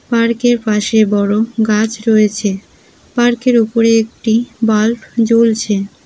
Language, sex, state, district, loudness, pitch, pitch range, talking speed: Bengali, female, West Bengal, Cooch Behar, -14 LUFS, 225 Hz, 215-230 Hz, 120 wpm